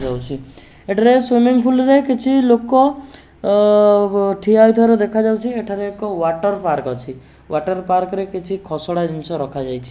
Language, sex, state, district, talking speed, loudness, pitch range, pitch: Odia, male, Odisha, Nuapada, 135 wpm, -16 LUFS, 165-230 Hz, 200 Hz